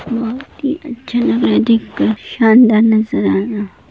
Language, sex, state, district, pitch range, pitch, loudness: Hindi, female, Bihar, Darbhanga, 210-245 Hz, 225 Hz, -14 LUFS